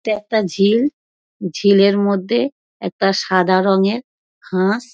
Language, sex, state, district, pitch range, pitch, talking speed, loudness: Bengali, female, West Bengal, Dakshin Dinajpur, 190-225 Hz, 200 Hz, 110 wpm, -17 LUFS